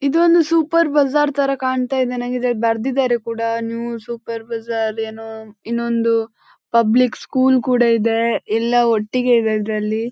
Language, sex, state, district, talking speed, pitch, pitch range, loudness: Kannada, female, Karnataka, Dakshina Kannada, 130 wpm, 235 Hz, 225-260 Hz, -18 LUFS